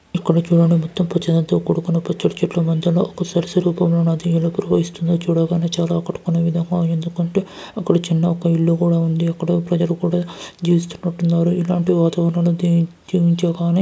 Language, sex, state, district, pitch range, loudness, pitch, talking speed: Telugu, male, Karnataka, Dharwad, 170-175 Hz, -18 LUFS, 170 Hz, 150 wpm